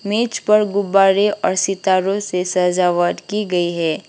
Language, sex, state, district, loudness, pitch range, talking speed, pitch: Hindi, female, Sikkim, Gangtok, -17 LUFS, 180-205 Hz, 145 wpm, 195 Hz